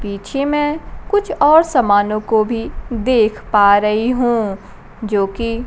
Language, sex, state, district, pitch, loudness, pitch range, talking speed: Hindi, female, Bihar, Kaimur, 225 Hz, -16 LUFS, 205-255 Hz, 140 wpm